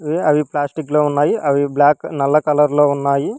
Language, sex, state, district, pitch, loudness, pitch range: Telugu, male, Telangana, Hyderabad, 145 Hz, -16 LUFS, 140-150 Hz